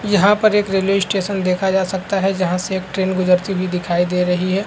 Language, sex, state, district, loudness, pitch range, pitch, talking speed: Hindi, male, Chhattisgarh, Korba, -18 LUFS, 185-195 Hz, 190 Hz, 245 wpm